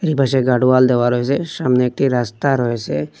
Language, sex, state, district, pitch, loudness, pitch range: Bengali, male, Assam, Hailakandi, 125 Hz, -16 LUFS, 120-135 Hz